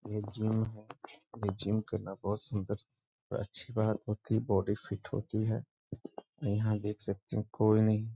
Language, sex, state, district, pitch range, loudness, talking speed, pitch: Hindi, male, Bihar, Sitamarhi, 105-110 Hz, -34 LUFS, 170 wpm, 110 Hz